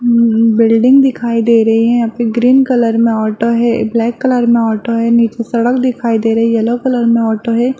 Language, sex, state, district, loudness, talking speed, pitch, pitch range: Hindi, female, Bihar, Bhagalpur, -12 LUFS, 170 wpm, 235 Hz, 230-240 Hz